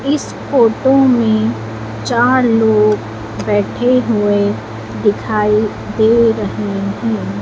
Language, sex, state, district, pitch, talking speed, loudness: Hindi, female, Madhya Pradesh, Dhar, 205 Hz, 90 wpm, -14 LUFS